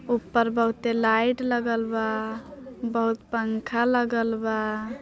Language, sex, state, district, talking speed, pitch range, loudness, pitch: Bhojpuri, female, Bihar, Gopalganj, 105 wpm, 225-240 Hz, -25 LUFS, 230 Hz